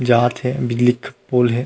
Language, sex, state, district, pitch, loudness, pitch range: Chhattisgarhi, male, Chhattisgarh, Rajnandgaon, 125 Hz, -18 LUFS, 120-125 Hz